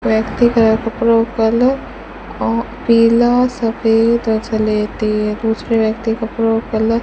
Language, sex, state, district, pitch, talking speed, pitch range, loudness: Hindi, female, Rajasthan, Bikaner, 225 Hz, 120 wpm, 220-235 Hz, -15 LUFS